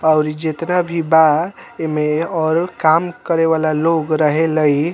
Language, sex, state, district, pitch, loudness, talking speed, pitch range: Bhojpuri, male, Bihar, Muzaffarpur, 160 Hz, -16 LUFS, 135 wpm, 155-165 Hz